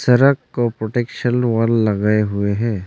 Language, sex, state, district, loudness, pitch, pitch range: Hindi, male, Arunachal Pradesh, Longding, -18 LUFS, 115 Hz, 105-120 Hz